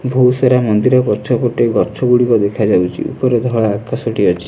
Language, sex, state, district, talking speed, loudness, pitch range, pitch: Odia, male, Odisha, Nuapada, 160 wpm, -14 LUFS, 105-125 Hz, 120 Hz